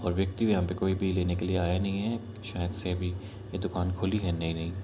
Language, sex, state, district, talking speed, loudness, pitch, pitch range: Hindi, male, Bihar, Kishanganj, 260 wpm, -30 LUFS, 95 Hz, 90-100 Hz